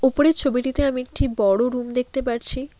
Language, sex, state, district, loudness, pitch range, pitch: Bengali, female, West Bengal, Alipurduar, -21 LUFS, 245-270 Hz, 255 Hz